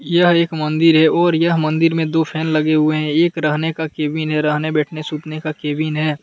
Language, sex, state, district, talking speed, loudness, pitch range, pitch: Hindi, male, Jharkhand, Deoghar, 240 wpm, -17 LUFS, 155-165 Hz, 155 Hz